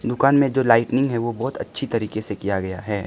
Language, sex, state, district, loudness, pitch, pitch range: Hindi, male, Arunachal Pradesh, Lower Dibang Valley, -21 LUFS, 115 Hz, 105-130 Hz